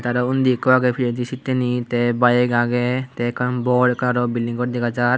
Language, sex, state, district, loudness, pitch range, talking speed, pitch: Chakma, male, Tripura, Unakoti, -19 LUFS, 120-125 Hz, 220 wpm, 125 Hz